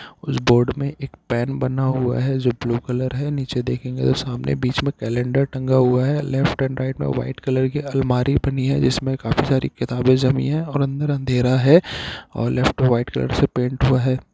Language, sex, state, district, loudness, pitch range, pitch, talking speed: Hindi, male, Chhattisgarh, Bilaspur, -20 LUFS, 125-135 Hz, 130 Hz, 210 wpm